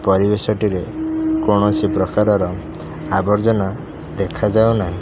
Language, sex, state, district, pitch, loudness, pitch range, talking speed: Odia, male, Odisha, Khordha, 105 Hz, -17 LUFS, 95-110 Hz, 70 wpm